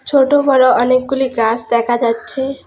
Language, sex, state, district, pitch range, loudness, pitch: Bengali, female, West Bengal, Alipurduar, 235-270 Hz, -14 LUFS, 255 Hz